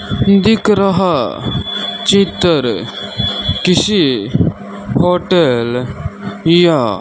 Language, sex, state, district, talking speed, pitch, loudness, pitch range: Hindi, male, Rajasthan, Bikaner, 60 wpm, 175 Hz, -14 LUFS, 155-195 Hz